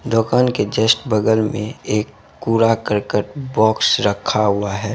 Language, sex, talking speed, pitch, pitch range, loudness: Bhojpuri, male, 145 wpm, 110 Hz, 105-115 Hz, -17 LUFS